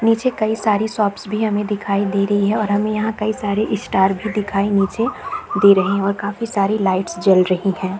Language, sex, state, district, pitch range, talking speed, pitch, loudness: Hindi, female, Chhattisgarh, Raigarh, 195-215 Hz, 220 wpm, 205 Hz, -18 LUFS